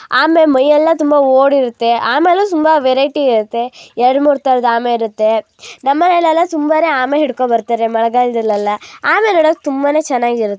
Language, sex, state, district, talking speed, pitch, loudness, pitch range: Kannada, female, Karnataka, Raichur, 135 wpm, 265 Hz, -13 LUFS, 235-310 Hz